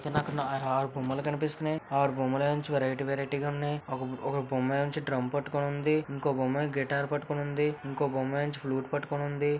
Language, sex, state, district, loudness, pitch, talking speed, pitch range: Telugu, female, Andhra Pradesh, Visakhapatnam, -31 LUFS, 145 Hz, 160 wpm, 135-145 Hz